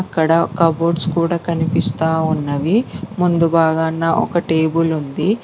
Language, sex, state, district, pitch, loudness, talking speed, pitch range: Telugu, female, Telangana, Mahabubabad, 165 Hz, -17 LUFS, 110 wpm, 160-170 Hz